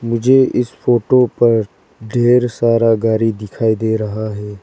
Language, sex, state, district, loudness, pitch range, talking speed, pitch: Hindi, female, Arunachal Pradesh, Lower Dibang Valley, -15 LUFS, 110-120 Hz, 140 wpm, 115 Hz